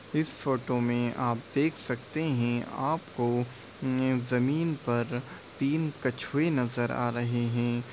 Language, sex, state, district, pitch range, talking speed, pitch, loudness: Hindi, male, Uttar Pradesh, Deoria, 120-140 Hz, 120 wpm, 125 Hz, -30 LUFS